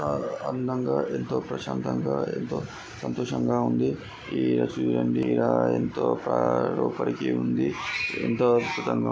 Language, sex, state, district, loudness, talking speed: Telugu, male, Andhra Pradesh, Srikakulam, -26 LUFS, 100 wpm